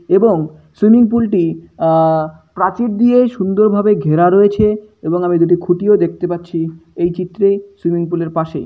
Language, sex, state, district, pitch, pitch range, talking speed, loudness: Bengali, male, West Bengal, Malda, 175 Hz, 165-210 Hz, 160 wpm, -14 LUFS